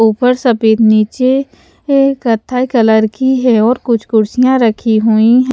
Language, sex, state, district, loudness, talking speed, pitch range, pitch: Hindi, female, Haryana, Charkhi Dadri, -11 LUFS, 150 wpm, 220-255 Hz, 235 Hz